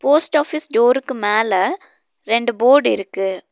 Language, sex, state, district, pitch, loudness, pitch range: Tamil, female, Tamil Nadu, Nilgiris, 245 Hz, -17 LUFS, 210-290 Hz